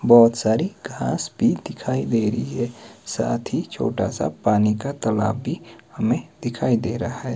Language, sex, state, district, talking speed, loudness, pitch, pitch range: Hindi, male, Himachal Pradesh, Shimla, 170 wpm, -22 LUFS, 115 Hz, 110-120 Hz